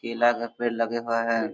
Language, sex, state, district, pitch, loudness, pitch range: Hindi, male, Bihar, Darbhanga, 115 Hz, -26 LUFS, 115-120 Hz